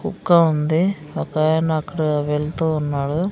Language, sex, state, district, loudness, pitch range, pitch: Telugu, female, Andhra Pradesh, Sri Satya Sai, -20 LUFS, 150-170 Hz, 155 Hz